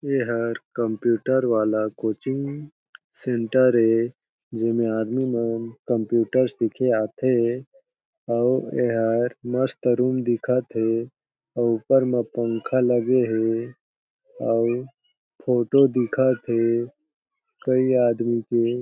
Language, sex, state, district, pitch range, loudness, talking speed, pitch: Chhattisgarhi, male, Chhattisgarh, Jashpur, 115-130 Hz, -23 LUFS, 100 wpm, 120 Hz